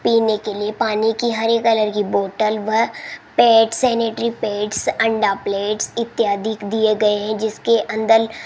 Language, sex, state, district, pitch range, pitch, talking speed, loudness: Hindi, female, Rajasthan, Jaipur, 210-225 Hz, 220 Hz, 155 wpm, -18 LUFS